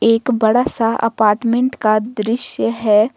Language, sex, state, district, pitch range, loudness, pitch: Hindi, female, Jharkhand, Ranchi, 215-240 Hz, -16 LUFS, 230 Hz